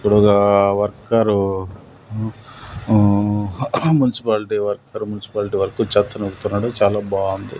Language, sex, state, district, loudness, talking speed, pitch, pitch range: Telugu, male, Andhra Pradesh, Sri Satya Sai, -18 LUFS, 100 wpm, 105 Hz, 100-110 Hz